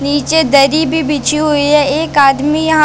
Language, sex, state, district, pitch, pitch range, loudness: Hindi, female, Madhya Pradesh, Katni, 295 Hz, 285-310 Hz, -11 LUFS